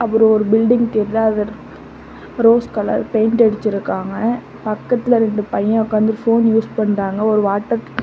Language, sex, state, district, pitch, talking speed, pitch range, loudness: Tamil, female, Tamil Nadu, Namakkal, 220 Hz, 135 wpm, 215-230 Hz, -16 LUFS